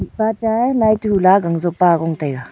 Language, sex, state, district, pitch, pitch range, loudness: Wancho, female, Arunachal Pradesh, Longding, 185 Hz, 165-220 Hz, -16 LUFS